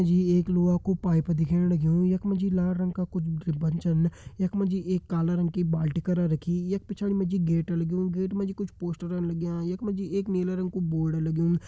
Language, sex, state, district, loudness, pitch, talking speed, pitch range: Hindi, male, Uttarakhand, Tehri Garhwal, -27 LUFS, 175 Hz, 220 wpm, 170-185 Hz